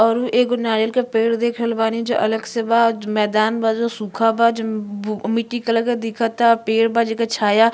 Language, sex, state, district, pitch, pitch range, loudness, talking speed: Bhojpuri, female, Uttar Pradesh, Ghazipur, 230 Hz, 220-230 Hz, -19 LUFS, 225 wpm